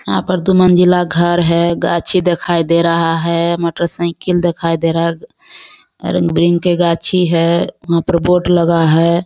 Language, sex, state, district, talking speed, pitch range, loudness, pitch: Hindi, female, Bihar, Kishanganj, 160 wpm, 170-175 Hz, -14 LUFS, 170 Hz